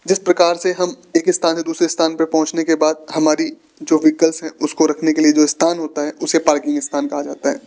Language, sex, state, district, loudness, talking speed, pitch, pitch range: Hindi, male, Rajasthan, Jaipur, -17 LUFS, 245 wpm, 160 Hz, 155-170 Hz